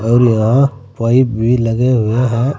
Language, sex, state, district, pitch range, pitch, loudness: Hindi, male, Uttar Pradesh, Saharanpur, 115-125 Hz, 120 Hz, -13 LUFS